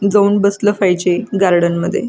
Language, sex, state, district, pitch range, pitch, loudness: Marathi, female, Maharashtra, Solapur, 180-205 Hz, 200 Hz, -14 LUFS